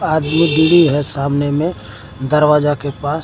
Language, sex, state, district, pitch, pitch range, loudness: Hindi, male, Jharkhand, Garhwa, 150 Hz, 145-155 Hz, -15 LUFS